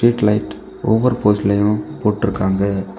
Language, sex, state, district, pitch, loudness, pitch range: Tamil, male, Tamil Nadu, Kanyakumari, 105 Hz, -17 LUFS, 95-105 Hz